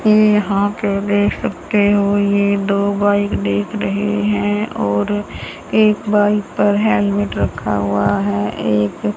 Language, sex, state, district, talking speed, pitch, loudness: Hindi, female, Haryana, Charkhi Dadri, 135 wpm, 200 Hz, -16 LUFS